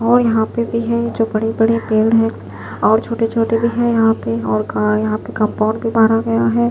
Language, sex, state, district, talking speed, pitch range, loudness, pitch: Hindi, female, Maharashtra, Gondia, 195 wpm, 215-230 Hz, -16 LUFS, 225 Hz